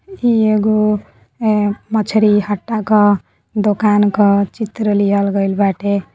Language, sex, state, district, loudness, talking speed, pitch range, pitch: Bhojpuri, female, Uttar Pradesh, Deoria, -15 LUFS, 115 wpm, 200-215 Hz, 210 Hz